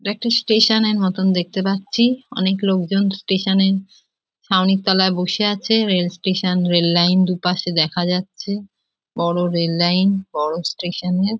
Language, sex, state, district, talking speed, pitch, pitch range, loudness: Bengali, female, West Bengal, Jhargram, 150 wpm, 190 Hz, 180-200 Hz, -18 LUFS